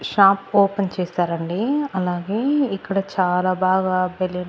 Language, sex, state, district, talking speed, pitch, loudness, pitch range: Telugu, female, Andhra Pradesh, Annamaya, 120 wpm, 190 Hz, -20 LUFS, 180-200 Hz